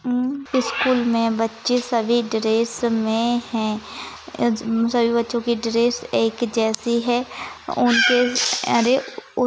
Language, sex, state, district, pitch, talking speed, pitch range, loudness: Hindi, female, Maharashtra, Pune, 235 Hz, 100 wpm, 230-245 Hz, -20 LUFS